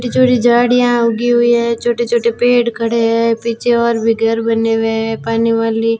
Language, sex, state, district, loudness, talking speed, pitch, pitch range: Hindi, female, Rajasthan, Jaisalmer, -14 LUFS, 200 wpm, 235 Hz, 225-240 Hz